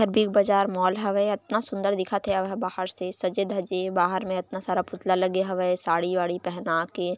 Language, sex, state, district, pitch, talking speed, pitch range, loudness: Chhattisgarhi, female, Chhattisgarh, Raigarh, 185 Hz, 200 wpm, 185-200 Hz, -25 LUFS